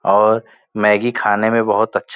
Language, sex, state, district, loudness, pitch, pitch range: Hindi, male, Uttar Pradesh, Gorakhpur, -16 LUFS, 110 Hz, 105-115 Hz